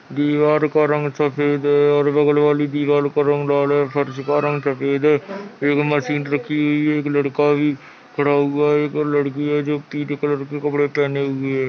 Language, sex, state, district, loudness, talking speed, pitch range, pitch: Hindi, male, Uttarakhand, Uttarkashi, -19 LUFS, 205 wpm, 145-150 Hz, 145 Hz